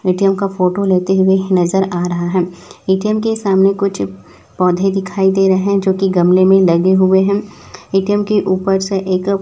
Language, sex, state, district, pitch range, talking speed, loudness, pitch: Hindi, male, Chhattisgarh, Raipur, 185-195 Hz, 190 wpm, -14 LUFS, 190 Hz